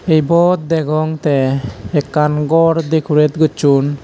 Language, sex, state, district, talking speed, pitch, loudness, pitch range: Chakma, male, Tripura, Dhalai, 105 wpm, 155 Hz, -14 LUFS, 145-160 Hz